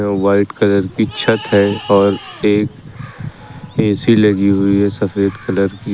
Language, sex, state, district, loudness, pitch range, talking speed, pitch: Hindi, male, Uttar Pradesh, Lucknow, -15 LUFS, 100-115 Hz, 140 wpm, 100 Hz